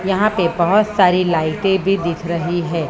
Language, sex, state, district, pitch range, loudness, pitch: Hindi, female, Maharashtra, Mumbai Suburban, 170-195 Hz, -17 LUFS, 175 Hz